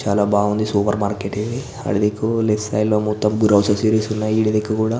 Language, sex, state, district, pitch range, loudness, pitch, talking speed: Telugu, male, Andhra Pradesh, Visakhapatnam, 105-110 Hz, -19 LUFS, 105 Hz, 95 wpm